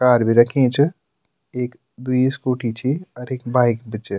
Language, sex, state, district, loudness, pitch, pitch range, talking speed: Garhwali, male, Uttarakhand, Tehri Garhwal, -20 LUFS, 125 Hz, 120-130 Hz, 170 wpm